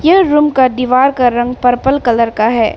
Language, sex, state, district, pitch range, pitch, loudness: Hindi, female, Arunachal Pradesh, Papum Pare, 240-270 Hz, 250 Hz, -12 LUFS